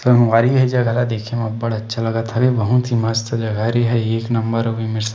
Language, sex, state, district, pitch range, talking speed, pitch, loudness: Chhattisgarhi, male, Chhattisgarh, Bastar, 115-120 Hz, 245 wpm, 115 Hz, -18 LUFS